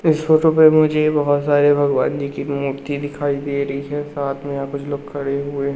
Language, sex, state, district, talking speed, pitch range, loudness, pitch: Hindi, male, Madhya Pradesh, Umaria, 220 wpm, 140-145 Hz, -18 LUFS, 145 Hz